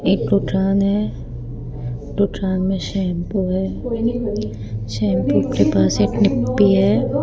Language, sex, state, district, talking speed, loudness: Hindi, female, Rajasthan, Jaipur, 100 wpm, -19 LUFS